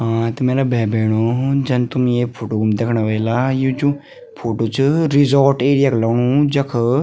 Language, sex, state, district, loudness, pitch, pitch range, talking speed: Garhwali, female, Uttarakhand, Tehri Garhwal, -17 LUFS, 125 Hz, 115-140 Hz, 180 wpm